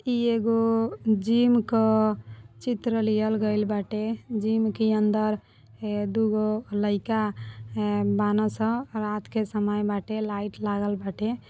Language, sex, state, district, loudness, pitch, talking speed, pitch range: Bhojpuri, female, Uttar Pradesh, Deoria, -26 LUFS, 215 Hz, 125 wpm, 205-220 Hz